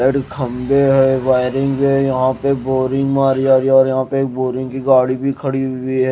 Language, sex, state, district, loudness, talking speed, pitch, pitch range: Hindi, male, Odisha, Malkangiri, -16 LUFS, 235 wpm, 130 Hz, 130-135 Hz